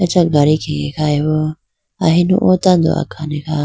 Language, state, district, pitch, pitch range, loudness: Idu Mishmi, Arunachal Pradesh, Lower Dibang Valley, 155 Hz, 150-175 Hz, -15 LUFS